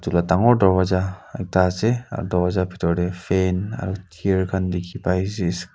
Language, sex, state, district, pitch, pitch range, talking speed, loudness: Nagamese, male, Nagaland, Kohima, 95 Hz, 90-95 Hz, 135 wpm, -21 LUFS